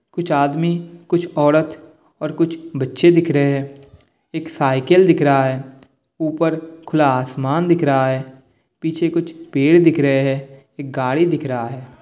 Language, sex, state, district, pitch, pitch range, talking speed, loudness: Hindi, male, Bihar, Kishanganj, 145 Hz, 135-165 Hz, 155 wpm, -17 LUFS